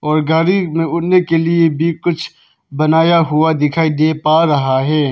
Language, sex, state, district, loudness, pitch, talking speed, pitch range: Hindi, male, Arunachal Pradesh, Papum Pare, -14 LUFS, 160 Hz, 175 wpm, 155-170 Hz